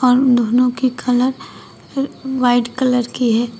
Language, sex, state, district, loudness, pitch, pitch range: Hindi, female, Uttar Pradesh, Shamli, -17 LUFS, 250 Hz, 245-260 Hz